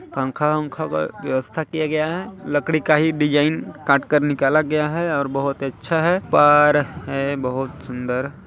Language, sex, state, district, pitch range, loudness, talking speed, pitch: Hindi, male, Chhattisgarh, Balrampur, 135-155 Hz, -20 LUFS, 170 wpm, 145 Hz